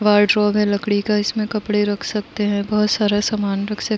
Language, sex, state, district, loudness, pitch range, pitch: Hindi, female, Uttar Pradesh, Muzaffarnagar, -19 LUFS, 205-210 Hz, 210 Hz